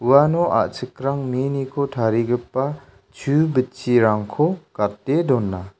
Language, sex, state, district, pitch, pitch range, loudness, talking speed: Garo, male, Meghalaya, South Garo Hills, 130 Hz, 120-140 Hz, -21 LUFS, 85 wpm